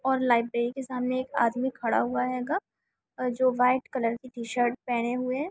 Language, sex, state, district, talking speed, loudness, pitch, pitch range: Hindi, female, Chhattisgarh, Jashpur, 195 wpm, -28 LUFS, 250 Hz, 235-255 Hz